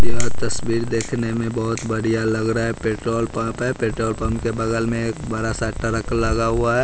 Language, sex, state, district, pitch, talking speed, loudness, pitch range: Hindi, male, Bihar, West Champaran, 115 Hz, 210 wpm, -22 LUFS, 110-115 Hz